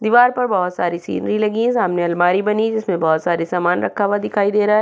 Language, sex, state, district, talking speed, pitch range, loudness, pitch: Hindi, female, Uttarakhand, Tehri Garhwal, 260 wpm, 175-215 Hz, -18 LUFS, 205 Hz